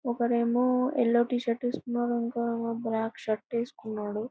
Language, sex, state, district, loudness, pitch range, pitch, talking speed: Telugu, female, Andhra Pradesh, Anantapur, -29 LUFS, 230-240 Hz, 235 Hz, 125 wpm